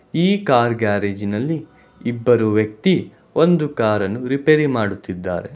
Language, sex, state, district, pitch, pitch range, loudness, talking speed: Kannada, male, Karnataka, Bangalore, 120 Hz, 105-150 Hz, -19 LUFS, 95 wpm